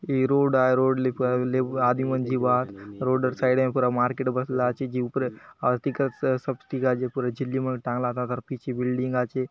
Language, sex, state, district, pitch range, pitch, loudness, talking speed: Halbi, male, Chhattisgarh, Bastar, 125-130 Hz, 130 Hz, -25 LUFS, 185 wpm